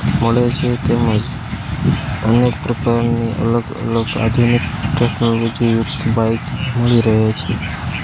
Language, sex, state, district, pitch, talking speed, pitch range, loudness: Gujarati, male, Gujarat, Gandhinagar, 120 Hz, 105 wpm, 115-120 Hz, -17 LUFS